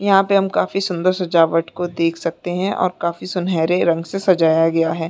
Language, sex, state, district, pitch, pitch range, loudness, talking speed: Hindi, female, Chhattisgarh, Bilaspur, 175 Hz, 165-185 Hz, -18 LUFS, 210 wpm